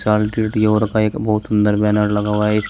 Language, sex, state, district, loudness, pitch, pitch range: Hindi, male, Uttar Pradesh, Shamli, -17 LUFS, 105 Hz, 105-110 Hz